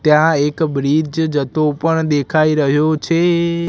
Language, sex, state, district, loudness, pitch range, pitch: Gujarati, male, Gujarat, Gandhinagar, -16 LUFS, 145-160 Hz, 155 Hz